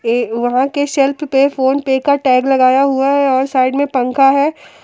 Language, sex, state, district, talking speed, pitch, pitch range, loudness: Hindi, female, Jharkhand, Palamu, 200 wpm, 270 Hz, 255-280 Hz, -14 LUFS